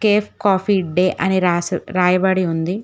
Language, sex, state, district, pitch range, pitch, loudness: Telugu, female, Telangana, Hyderabad, 180-200 Hz, 185 Hz, -18 LUFS